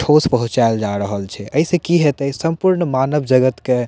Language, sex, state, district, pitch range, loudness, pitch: Maithili, male, Bihar, Purnia, 120-155 Hz, -17 LUFS, 130 Hz